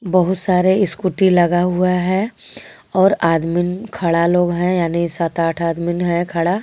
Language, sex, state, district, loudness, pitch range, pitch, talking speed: Hindi, female, Jharkhand, Garhwa, -17 LUFS, 170-185 Hz, 175 Hz, 155 wpm